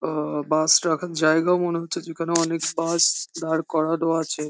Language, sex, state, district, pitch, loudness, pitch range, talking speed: Bengali, female, West Bengal, Jhargram, 165 Hz, -22 LUFS, 155-165 Hz, 160 wpm